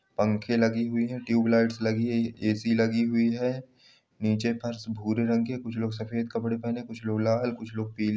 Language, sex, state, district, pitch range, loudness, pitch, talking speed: Hindi, male, Bihar, Samastipur, 110-115 Hz, -28 LUFS, 115 Hz, 220 wpm